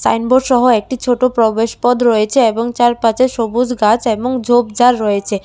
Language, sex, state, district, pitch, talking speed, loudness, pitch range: Bengali, female, Tripura, West Tripura, 240 Hz, 145 wpm, -13 LUFS, 225-250 Hz